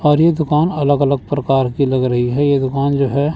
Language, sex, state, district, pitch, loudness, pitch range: Hindi, male, Chandigarh, Chandigarh, 140 Hz, -16 LUFS, 135-150 Hz